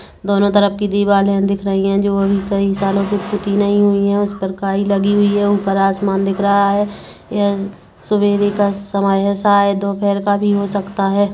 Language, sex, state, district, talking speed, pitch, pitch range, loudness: Hindi, female, Chhattisgarh, Kabirdham, 200 wpm, 200 Hz, 195-205 Hz, -16 LUFS